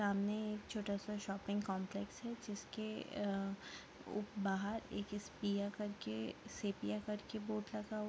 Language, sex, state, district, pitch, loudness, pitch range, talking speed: Hindi, female, Chhattisgarh, Korba, 205 Hz, -43 LUFS, 200-215 Hz, 140 wpm